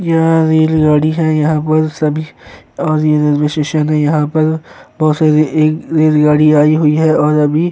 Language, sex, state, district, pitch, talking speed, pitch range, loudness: Hindi, male, Uttar Pradesh, Jyotiba Phule Nagar, 155 Hz, 165 wpm, 150-155 Hz, -12 LUFS